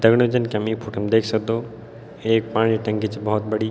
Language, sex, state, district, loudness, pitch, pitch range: Garhwali, male, Uttarakhand, Tehri Garhwal, -21 LUFS, 110 Hz, 110-115 Hz